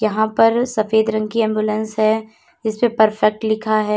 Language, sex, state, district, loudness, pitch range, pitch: Hindi, female, Uttar Pradesh, Lalitpur, -18 LUFS, 215-220 Hz, 220 Hz